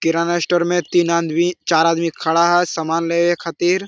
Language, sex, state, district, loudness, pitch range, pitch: Hindi, male, Jharkhand, Sahebganj, -17 LUFS, 165-175 Hz, 170 Hz